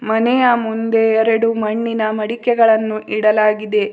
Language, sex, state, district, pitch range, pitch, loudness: Kannada, female, Karnataka, Bidar, 215-230 Hz, 220 Hz, -16 LUFS